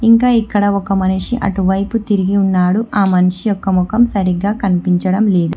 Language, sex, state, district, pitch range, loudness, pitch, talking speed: Telugu, female, Telangana, Hyderabad, 185-210 Hz, -14 LUFS, 195 Hz, 150 wpm